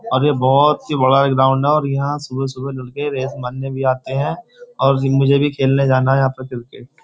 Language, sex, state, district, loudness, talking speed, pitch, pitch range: Hindi, male, Uttar Pradesh, Jyotiba Phule Nagar, -17 LUFS, 220 wpm, 135 Hz, 130-145 Hz